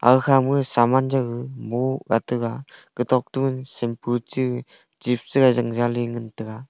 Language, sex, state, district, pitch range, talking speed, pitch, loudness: Wancho, male, Arunachal Pradesh, Longding, 120-130 Hz, 125 wpm, 125 Hz, -22 LUFS